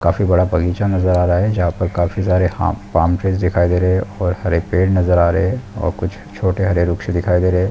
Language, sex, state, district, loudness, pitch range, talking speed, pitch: Hindi, male, Chhattisgarh, Sukma, -17 LUFS, 90-95 Hz, 265 wpm, 90 Hz